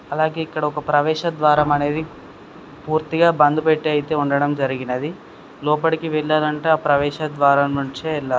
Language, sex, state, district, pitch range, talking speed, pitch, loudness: Telugu, male, Karnataka, Dharwad, 145-155 Hz, 150 wpm, 150 Hz, -19 LUFS